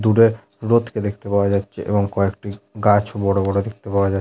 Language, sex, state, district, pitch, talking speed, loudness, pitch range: Bengali, male, West Bengal, Jhargram, 100 Hz, 230 wpm, -19 LUFS, 100-110 Hz